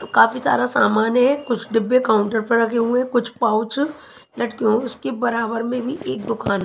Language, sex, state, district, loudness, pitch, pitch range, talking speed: Hindi, female, Himachal Pradesh, Shimla, -20 LUFS, 235 Hz, 225-250 Hz, 200 wpm